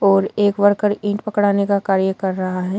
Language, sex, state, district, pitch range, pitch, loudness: Hindi, female, Uttar Pradesh, Shamli, 190-205 Hz, 200 Hz, -18 LUFS